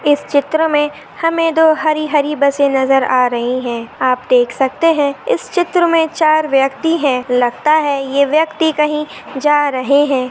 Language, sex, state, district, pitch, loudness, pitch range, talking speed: Hindi, female, Maharashtra, Pune, 295 Hz, -14 LUFS, 270-315 Hz, 175 wpm